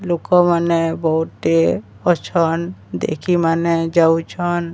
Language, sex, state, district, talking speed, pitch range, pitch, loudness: Odia, male, Odisha, Sambalpur, 75 wpm, 160-175 Hz, 165 Hz, -17 LUFS